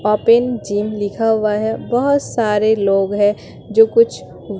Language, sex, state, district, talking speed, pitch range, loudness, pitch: Hindi, female, Bihar, Katihar, 145 wpm, 205-240 Hz, -16 LUFS, 220 Hz